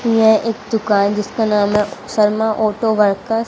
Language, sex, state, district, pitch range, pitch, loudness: Hindi, female, Haryana, Jhajjar, 210-225 Hz, 215 Hz, -16 LUFS